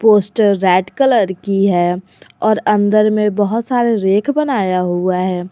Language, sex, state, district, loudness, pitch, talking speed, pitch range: Hindi, female, Jharkhand, Garhwa, -15 LUFS, 205 Hz, 150 wpm, 185-215 Hz